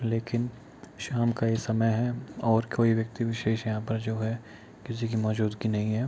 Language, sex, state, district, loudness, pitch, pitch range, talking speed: Hindi, male, Bihar, Kishanganj, -29 LUFS, 115 Hz, 110-115 Hz, 185 wpm